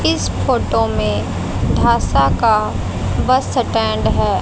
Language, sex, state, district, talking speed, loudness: Hindi, female, Haryana, Jhajjar, 110 wpm, -16 LUFS